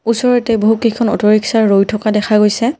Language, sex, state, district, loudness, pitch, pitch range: Assamese, female, Assam, Kamrup Metropolitan, -13 LUFS, 220 Hz, 210-230 Hz